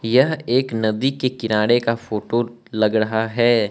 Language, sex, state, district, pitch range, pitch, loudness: Hindi, male, Arunachal Pradesh, Lower Dibang Valley, 110-125 Hz, 115 Hz, -20 LUFS